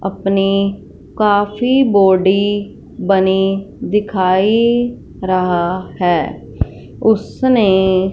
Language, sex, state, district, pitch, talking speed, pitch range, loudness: Hindi, female, Punjab, Fazilka, 195 Hz, 60 wpm, 190-210 Hz, -15 LUFS